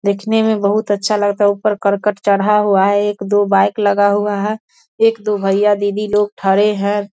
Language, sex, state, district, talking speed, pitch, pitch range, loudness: Hindi, female, Bihar, Saharsa, 185 wpm, 205 Hz, 200-210 Hz, -15 LUFS